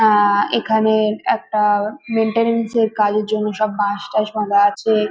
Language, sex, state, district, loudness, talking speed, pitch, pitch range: Bengali, female, West Bengal, North 24 Parganas, -17 LUFS, 150 wpm, 215 Hz, 210-220 Hz